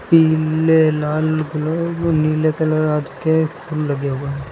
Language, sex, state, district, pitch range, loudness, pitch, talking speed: Hindi, male, Uttar Pradesh, Lucknow, 150-160 Hz, -18 LUFS, 155 Hz, 135 wpm